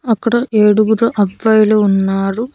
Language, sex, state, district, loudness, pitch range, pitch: Telugu, female, Andhra Pradesh, Annamaya, -13 LUFS, 205-230 Hz, 215 Hz